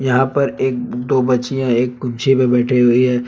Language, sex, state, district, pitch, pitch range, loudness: Hindi, male, Jharkhand, Palamu, 125 Hz, 125-130 Hz, -16 LUFS